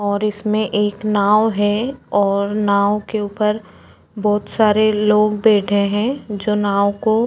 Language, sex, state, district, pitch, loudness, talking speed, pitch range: Hindi, female, Uttarakhand, Tehri Garhwal, 210 Hz, -17 LUFS, 150 wpm, 205-215 Hz